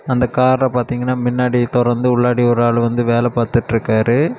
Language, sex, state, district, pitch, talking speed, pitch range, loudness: Tamil, male, Tamil Nadu, Kanyakumari, 120 Hz, 150 wpm, 120-125 Hz, -16 LUFS